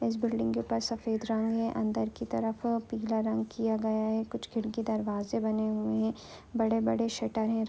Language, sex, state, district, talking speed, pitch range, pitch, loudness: Hindi, female, Uttar Pradesh, Deoria, 185 wpm, 215-225 Hz, 220 Hz, -31 LUFS